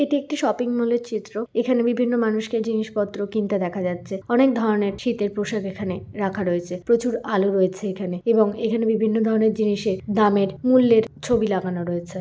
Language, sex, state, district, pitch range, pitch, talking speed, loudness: Bengali, female, West Bengal, Kolkata, 195-235 Hz, 215 Hz, 165 wpm, -22 LUFS